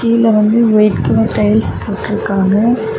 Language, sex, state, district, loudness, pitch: Tamil, female, Tamil Nadu, Kanyakumari, -13 LUFS, 210 Hz